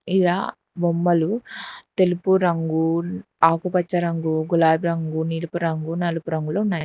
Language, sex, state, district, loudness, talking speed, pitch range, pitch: Telugu, female, Telangana, Hyderabad, -22 LUFS, 115 wpm, 160-175 Hz, 170 Hz